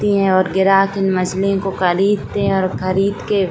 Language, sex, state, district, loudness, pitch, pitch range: Hindi, female, Bihar, Saran, -16 LUFS, 195 Hz, 185-195 Hz